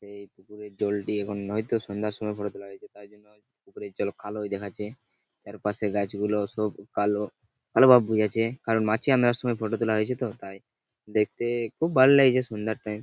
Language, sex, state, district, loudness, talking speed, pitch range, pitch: Bengali, male, West Bengal, Purulia, -26 LUFS, 185 wpm, 105-120 Hz, 105 Hz